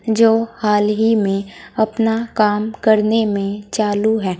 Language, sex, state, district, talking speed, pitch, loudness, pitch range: Hindi, female, Uttar Pradesh, Saharanpur, 135 wpm, 215 Hz, -17 LUFS, 205-225 Hz